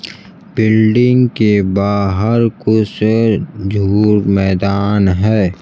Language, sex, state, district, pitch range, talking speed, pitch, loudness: Hindi, male, Bihar, Kaimur, 100-110 Hz, 75 wpm, 105 Hz, -13 LUFS